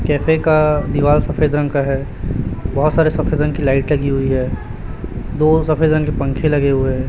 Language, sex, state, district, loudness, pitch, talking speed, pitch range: Hindi, male, Chhattisgarh, Raipur, -16 LUFS, 150 Hz, 205 wpm, 135-155 Hz